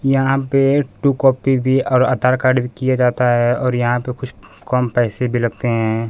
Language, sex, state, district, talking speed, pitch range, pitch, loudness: Hindi, male, Bihar, Kaimur, 205 wpm, 120-135 Hz, 125 Hz, -17 LUFS